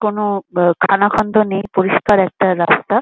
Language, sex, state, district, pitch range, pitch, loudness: Bengali, female, West Bengal, Kolkata, 185-210 Hz, 195 Hz, -15 LUFS